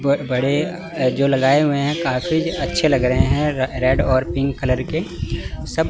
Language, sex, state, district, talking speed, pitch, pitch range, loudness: Hindi, male, Chandigarh, Chandigarh, 150 wpm, 140 Hz, 130-150 Hz, -19 LUFS